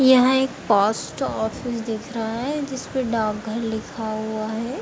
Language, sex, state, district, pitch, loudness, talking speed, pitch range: Hindi, female, Uttar Pradesh, Hamirpur, 225 Hz, -23 LUFS, 160 wpm, 220-255 Hz